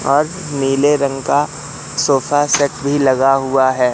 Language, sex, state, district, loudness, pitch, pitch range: Hindi, male, Madhya Pradesh, Katni, -15 LUFS, 140 Hz, 135-145 Hz